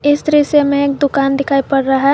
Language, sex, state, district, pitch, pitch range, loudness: Hindi, female, Jharkhand, Garhwa, 280 Hz, 275-290 Hz, -14 LUFS